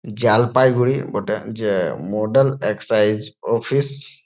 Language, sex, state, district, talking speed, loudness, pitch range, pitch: Bengali, male, West Bengal, Jalpaiguri, 100 wpm, -18 LUFS, 110-135 Hz, 125 Hz